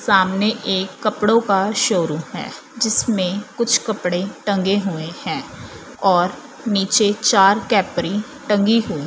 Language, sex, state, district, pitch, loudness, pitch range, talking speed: Hindi, female, Punjab, Fazilka, 205 Hz, -18 LUFS, 190-225 Hz, 120 wpm